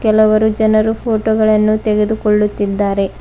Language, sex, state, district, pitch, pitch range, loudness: Kannada, female, Karnataka, Bidar, 215 Hz, 210-220 Hz, -14 LUFS